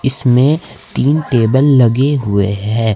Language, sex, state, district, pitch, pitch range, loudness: Hindi, male, Jharkhand, Ranchi, 130 Hz, 110-140 Hz, -13 LUFS